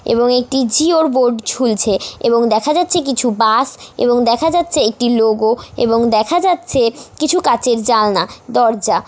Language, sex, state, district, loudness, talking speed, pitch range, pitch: Bengali, female, West Bengal, Dakshin Dinajpur, -14 LUFS, 145 wpm, 225-300 Hz, 240 Hz